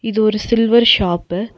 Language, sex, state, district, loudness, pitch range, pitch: Tamil, female, Tamil Nadu, Nilgiris, -14 LUFS, 195-230 Hz, 220 Hz